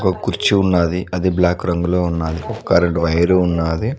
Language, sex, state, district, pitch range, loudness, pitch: Telugu, male, Telangana, Mahabubabad, 85-90 Hz, -17 LUFS, 90 Hz